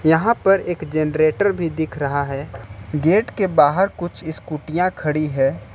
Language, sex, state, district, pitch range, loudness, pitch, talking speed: Hindi, male, Jharkhand, Ranchi, 145-175 Hz, -19 LUFS, 155 Hz, 155 wpm